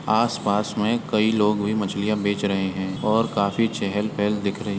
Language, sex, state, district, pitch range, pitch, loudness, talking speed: Hindi, male, Uttar Pradesh, Etah, 100-110 Hz, 105 Hz, -23 LUFS, 200 wpm